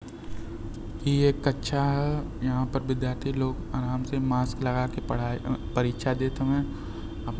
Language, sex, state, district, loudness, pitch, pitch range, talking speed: Hindi, male, Uttar Pradesh, Varanasi, -28 LUFS, 130 Hz, 115-135 Hz, 105 wpm